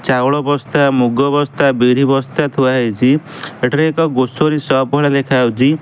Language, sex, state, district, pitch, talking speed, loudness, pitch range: Odia, male, Odisha, Malkangiri, 135 Hz, 145 wpm, -14 LUFS, 130-145 Hz